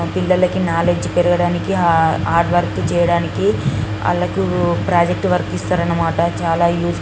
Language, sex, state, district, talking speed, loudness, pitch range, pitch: Telugu, female, Andhra Pradesh, Guntur, 120 wpm, -17 LUFS, 105-175 Hz, 170 Hz